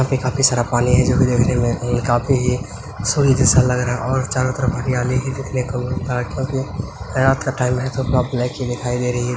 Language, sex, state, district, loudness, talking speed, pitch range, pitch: Maithili, male, Bihar, Begusarai, -18 LUFS, 220 wpm, 125-130 Hz, 125 Hz